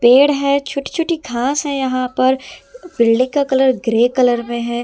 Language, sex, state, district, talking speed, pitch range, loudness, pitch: Hindi, female, Delhi, New Delhi, 185 wpm, 240-280 Hz, -16 LUFS, 260 Hz